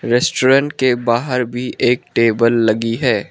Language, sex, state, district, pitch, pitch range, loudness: Hindi, male, Arunachal Pradesh, Lower Dibang Valley, 120 Hz, 115-130 Hz, -16 LUFS